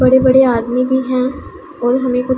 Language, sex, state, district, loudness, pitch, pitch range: Hindi, female, Punjab, Pathankot, -14 LUFS, 255 Hz, 250-260 Hz